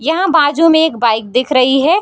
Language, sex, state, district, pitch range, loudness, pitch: Hindi, female, Bihar, Darbhanga, 250-325 Hz, -12 LUFS, 295 Hz